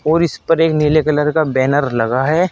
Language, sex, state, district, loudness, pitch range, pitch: Hindi, male, Uttar Pradesh, Saharanpur, -15 LUFS, 135-160 Hz, 150 Hz